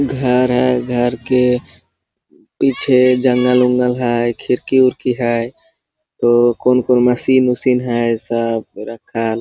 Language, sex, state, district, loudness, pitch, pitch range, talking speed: Hindi, male, Jharkhand, Sahebganj, -15 LUFS, 125 Hz, 120-125 Hz, 130 wpm